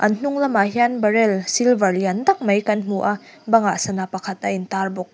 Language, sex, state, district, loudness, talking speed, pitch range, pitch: Mizo, female, Mizoram, Aizawl, -19 LUFS, 220 wpm, 195-225 Hz, 200 Hz